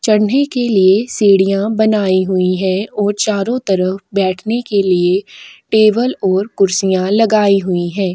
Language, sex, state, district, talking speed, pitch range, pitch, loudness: Hindi, female, Uttar Pradesh, Etah, 140 wpm, 190-220 Hz, 200 Hz, -14 LUFS